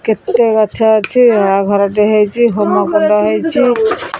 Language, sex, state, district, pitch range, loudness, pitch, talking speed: Odia, female, Odisha, Khordha, 205-235 Hz, -12 LUFS, 215 Hz, 115 wpm